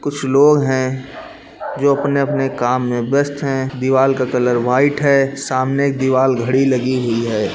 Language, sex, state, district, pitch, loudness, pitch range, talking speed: Hindi, male, Chhattisgarh, Bilaspur, 135 Hz, -16 LUFS, 130-140 Hz, 165 wpm